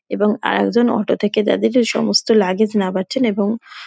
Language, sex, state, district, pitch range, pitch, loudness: Bengali, female, West Bengal, Dakshin Dinajpur, 205-235 Hz, 215 Hz, -17 LUFS